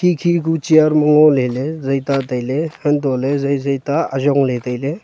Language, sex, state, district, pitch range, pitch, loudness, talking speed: Wancho, male, Arunachal Pradesh, Longding, 135-155 Hz, 140 Hz, -16 LUFS, 190 wpm